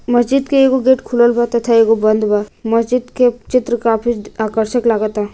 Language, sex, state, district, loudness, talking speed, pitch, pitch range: Bhojpuri, female, Bihar, Gopalganj, -15 LUFS, 180 wpm, 235 Hz, 220-245 Hz